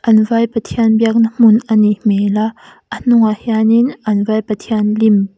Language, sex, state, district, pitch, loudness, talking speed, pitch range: Mizo, female, Mizoram, Aizawl, 220 Hz, -13 LUFS, 180 wpm, 210-230 Hz